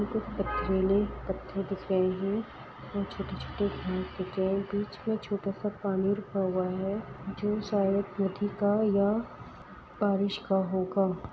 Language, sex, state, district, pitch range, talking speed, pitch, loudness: Hindi, female, Uttar Pradesh, Etah, 190-205 Hz, 160 wpm, 200 Hz, -30 LUFS